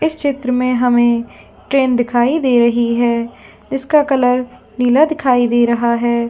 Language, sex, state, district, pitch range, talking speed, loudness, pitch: Hindi, female, Jharkhand, Jamtara, 240-270 Hz, 155 wpm, -15 LUFS, 245 Hz